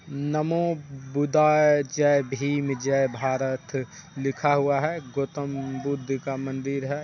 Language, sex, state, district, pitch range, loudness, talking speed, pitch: Hindi, male, Bihar, Saharsa, 135-150 Hz, -25 LUFS, 130 wpm, 140 Hz